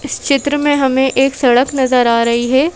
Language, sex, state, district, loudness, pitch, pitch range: Hindi, female, Madhya Pradesh, Bhopal, -13 LUFS, 265 Hz, 250-280 Hz